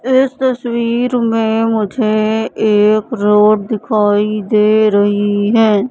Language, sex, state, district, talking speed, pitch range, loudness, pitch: Hindi, female, Madhya Pradesh, Katni, 100 wpm, 210-230 Hz, -13 LUFS, 215 Hz